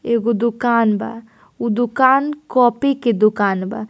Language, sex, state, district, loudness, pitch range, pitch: Hindi, female, Bihar, East Champaran, -17 LUFS, 215-250 Hz, 235 Hz